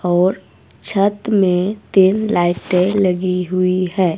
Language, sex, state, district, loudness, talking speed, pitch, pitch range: Hindi, female, Himachal Pradesh, Shimla, -16 LUFS, 115 wpm, 185 Hz, 180-200 Hz